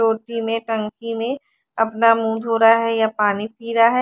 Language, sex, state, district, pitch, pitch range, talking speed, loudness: Hindi, female, Haryana, Charkhi Dadri, 225 Hz, 225-230 Hz, 210 wpm, -19 LUFS